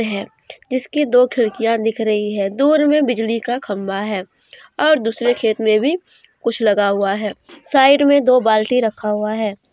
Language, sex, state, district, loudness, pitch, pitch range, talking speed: Hindi, female, Jharkhand, Deoghar, -17 LUFS, 225 Hz, 210-255 Hz, 180 wpm